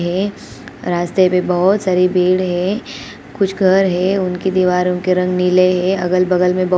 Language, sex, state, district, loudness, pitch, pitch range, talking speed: Hindi, female, Bihar, Gopalganj, -15 LUFS, 185 Hz, 180-190 Hz, 175 wpm